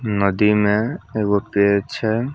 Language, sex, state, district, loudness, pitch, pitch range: Maithili, male, Bihar, Samastipur, -19 LUFS, 105 Hz, 100-110 Hz